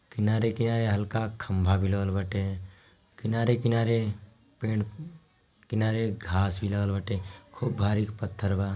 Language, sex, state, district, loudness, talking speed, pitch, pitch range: Bhojpuri, male, Bihar, Gopalganj, -29 LUFS, 125 wpm, 105 Hz, 100-115 Hz